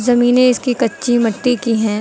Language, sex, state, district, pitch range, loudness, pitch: Hindi, female, Uttar Pradesh, Lucknow, 230-250 Hz, -15 LUFS, 240 Hz